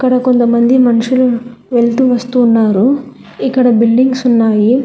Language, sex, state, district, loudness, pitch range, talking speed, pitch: Telugu, female, Telangana, Hyderabad, -11 LUFS, 235-255 Hz, 110 wpm, 245 Hz